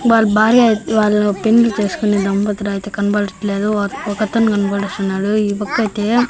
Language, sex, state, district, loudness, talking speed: Telugu, male, Andhra Pradesh, Annamaya, -16 LUFS, 135 wpm